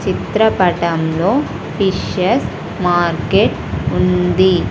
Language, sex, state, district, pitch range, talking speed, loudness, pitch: Telugu, female, Andhra Pradesh, Sri Satya Sai, 170-190 Hz, 50 wpm, -16 LUFS, 180 Hz